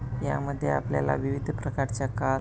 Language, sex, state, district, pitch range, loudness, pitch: Marathi, male, Maharashtra, Pune, 130-140 Hz, -29 LUFS, 135 Hz